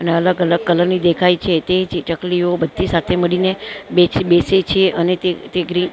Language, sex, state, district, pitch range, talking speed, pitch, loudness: Gujarati, female, Maharashtra, Mumbai Suburban, 175-185 Hz, 200 wpm, 180 Hz, -16 LUFS